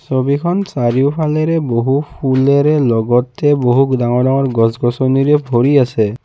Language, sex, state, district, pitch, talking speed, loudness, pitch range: Assamese, male, Assam, Kamrup Metropolitan, 135 Hz, 105 wpm, -14 LUFS, 120-145 Hz